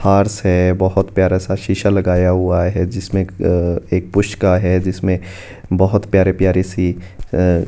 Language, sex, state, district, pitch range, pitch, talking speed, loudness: Hindi, male, Himachal Pradesh, Shimla, 90-95 Hz, 95 Hz, 155 wpm, -16 LUFS